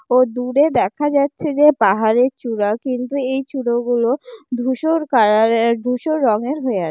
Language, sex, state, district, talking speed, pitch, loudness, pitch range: Bengali, female, West Bengal, Jalpaiguri, 150 wpm, 255 Hz, -17 LUFS, 235-285 Hz